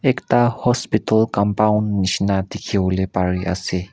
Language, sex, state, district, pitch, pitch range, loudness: Nagamese, male, Nagaland, Kohima, 100 Hz, 95-110 Hz, -19 LUFS